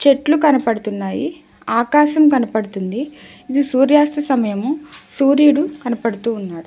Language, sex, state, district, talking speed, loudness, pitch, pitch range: Telugu, female, Telangana, Hyderabad, 80 wpm, -17 LUFS, 275 Hz, 230-295 Hz